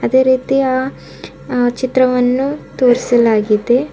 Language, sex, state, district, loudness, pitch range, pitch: Kannada, female, Karnataka, Bidar, -14 LUFS, 245-260 Hz, 255 Hz